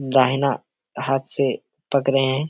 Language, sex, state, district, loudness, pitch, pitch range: Hindi, male, Bihar, Kishanganj, -21 LUFS, 135 Hz, 135-140 Hz